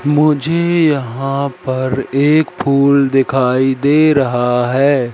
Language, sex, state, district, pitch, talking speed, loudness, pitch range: Hindi, male, Madhya Pradesh, Katni, 140 Hz, 105 wpm, -14 LUFS, 130-145 Hz